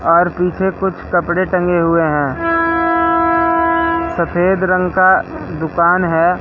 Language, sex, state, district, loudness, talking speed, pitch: Hindi, male, Madhya Pradesh, Katni, -14 LUFS, 110 wpm, 185 Hz